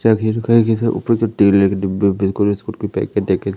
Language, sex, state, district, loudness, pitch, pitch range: Hindi, male, Madhya Pradesh, Umaria, -16 LUFS, 100 Hz, 100-115 Hz